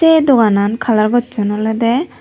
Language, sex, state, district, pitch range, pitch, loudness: Chakma, female, Tripura, Dhalai, 215-255 Hz, 225 Hz, -14 LUFS